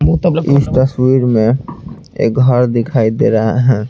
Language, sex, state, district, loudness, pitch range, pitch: Hindi, male, Bihar, Patna, -13 LUFS, 115-140 Hz, 130 Hz